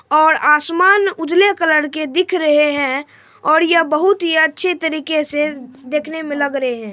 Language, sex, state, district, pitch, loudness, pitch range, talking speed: Hindi, female, Bihar, Supaul, 310 Hz, -15 LUFS, 295-335 Hz, 175 wpm